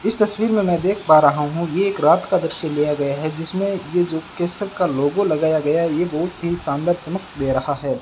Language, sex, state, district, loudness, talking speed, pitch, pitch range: Hindi, male, Rajasthan, Bikaner, -20 LUFS, 245 wpm, 170 Hz, 150-190 Hz